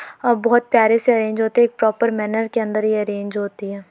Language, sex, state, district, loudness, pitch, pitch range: Hindi, female, Uttar Pradesh, Varanasi, -18 LUFS, 220 Hz, 210-230 Hz